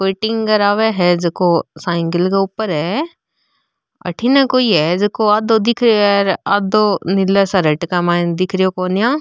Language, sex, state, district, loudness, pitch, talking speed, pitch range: Marwari, female, Rajasthan, Nagaur, -15 LUFS, 195 Hz, 170 wpm, 180-220 Hz